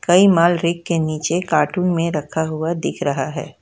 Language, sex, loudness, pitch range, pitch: Hindi, female, -19 LUFS, 155-175 Hz, 165 Hz